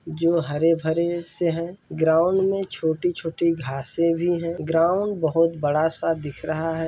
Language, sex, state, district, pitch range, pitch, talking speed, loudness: Hindi, male, Bihar, Kishanganj, 160-170 Hz, 165 Hz, 150 wpm, -23 LUFS